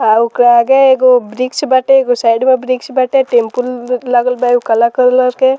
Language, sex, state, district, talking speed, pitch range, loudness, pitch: Bhojpuri, female, Bihar, Muzaffarpur, 215 wpm, 240-260 Hz, -11 LUFS, 250 Hz